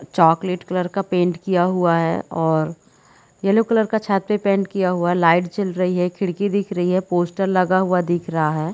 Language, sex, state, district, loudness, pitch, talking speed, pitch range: Hindi, female, Chhattisgarh, Bilaspur, -19 LUFS, 180 Hz, 220 wpm, 170-195 Hz